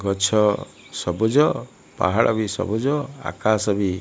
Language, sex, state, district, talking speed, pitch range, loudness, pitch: Odia, male, Odisha, Malkangiri, 120 wpm, 100-110 Hz, -21 LUFS, 105 Hz